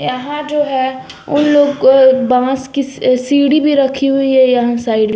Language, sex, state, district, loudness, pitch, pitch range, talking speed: Hindi, female, Bihar, West Champaran, -13 LUFS, 265 Hz, 255-285 Hz, 185 wpm